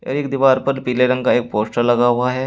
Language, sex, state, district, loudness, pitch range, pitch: Hindi, male, Uttar Pradesh, Shamli, -17 LUFS, 120-135 Hz, 125 Hz